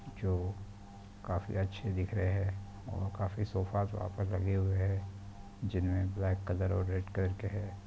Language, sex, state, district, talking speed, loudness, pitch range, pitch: Hindi, male, Chhattisgarh, Bastar, 170 wpm, -35 LUFS, 95-100 Hz, 100 Hz